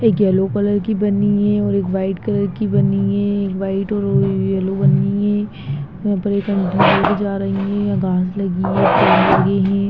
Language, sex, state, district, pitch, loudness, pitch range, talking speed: Hindi, female, Bihar, Begusarai, 200 Hz, -17 LUFS, 190-205 Hz, 225 wpm